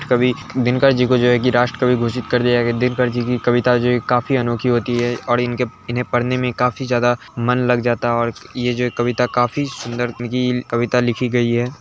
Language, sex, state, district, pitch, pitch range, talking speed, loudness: Hindi, male, Bihar, Begusarai, 125 Hz, 120-125 Hz, 240 wpm, -18 LUFS